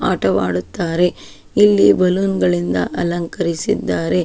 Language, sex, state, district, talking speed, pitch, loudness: Kannada, female, Karnataka, Shimoga, 70 wpm, 170 Hz, -17 LUFS